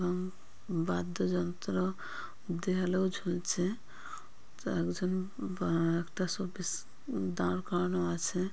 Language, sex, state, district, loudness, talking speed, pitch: Bengali, female, West Bengal, Purulia, -34 LUFS, 90 wpm, 175 Hz